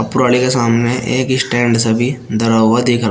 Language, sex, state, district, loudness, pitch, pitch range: Hindi, male, Uttar Pradesh, Shamli, -14 LUFS, 120 Hz, 115-125 Hz